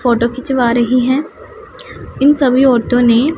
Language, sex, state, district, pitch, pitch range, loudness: Hindi, female, Punjab, Pathankot, 255 Hz, 240-275 Hz, -13 LUFS